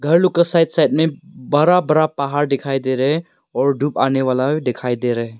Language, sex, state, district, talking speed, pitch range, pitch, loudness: Hindi, male, Arunachal Pradesh, Lower Dibang Valley, 235 wpm, 130-160 Hz, 145 Hz, -17 LUFS